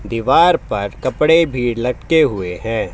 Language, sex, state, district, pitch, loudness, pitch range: Hindi, male, Haryana, Charkhi Dadri, 125 Hz, -16 LUFS, 115-155 Hz